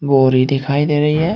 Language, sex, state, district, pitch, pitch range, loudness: Hindi, male, Uttar Pradesh, Shamli, 145 Hz, 135-150 Hz, -15 LUFS